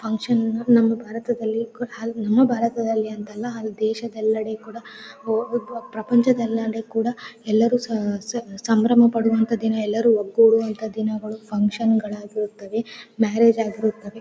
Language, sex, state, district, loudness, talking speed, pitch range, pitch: Kannada, female, Karnataka, Gulbarga, -22 LUFS, 105 wpm, 215-230 Hz, 225 Hz